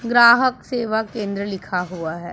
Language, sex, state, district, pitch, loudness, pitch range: Hindi, female, Punjab, Pathankot, 215 Hz, -19 LUFS, 180-235 Hz